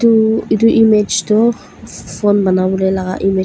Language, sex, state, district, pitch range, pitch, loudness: Nagamese, female, Nagaland, Dimapur, 190-225 Hz, 210 Hz, -13 LUFS